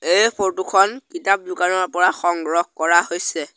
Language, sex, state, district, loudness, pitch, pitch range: Assamese, male, Assam, Sonitpur, -19 LUFS, 185 Hz, 170-195 Hz